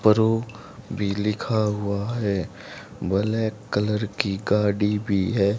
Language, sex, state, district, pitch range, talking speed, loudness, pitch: Hindi, male, Haryana, Charkhi Dadri, 100-110 Hz, 130 wpm, -24 LUFS, 105 Hz